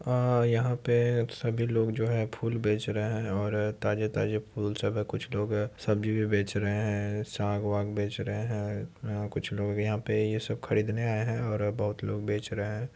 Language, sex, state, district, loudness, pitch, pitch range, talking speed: Hindi, male, Bihar, Supaul, -30 LUFS, 105 Hz, 105-115 Hz, 210 wpm